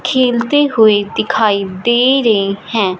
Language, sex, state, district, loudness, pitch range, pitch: Hindi, female, Punjab, Fazilka, -13 LUFS, 200-250 Hz, 225 Hz